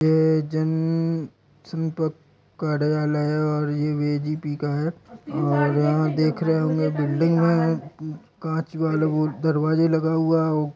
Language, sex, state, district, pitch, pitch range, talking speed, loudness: Hindi, male, Uttar Pradesh, Deoria, 155 Hz, 150-160 Hz, 130 wpm, -23 LUFS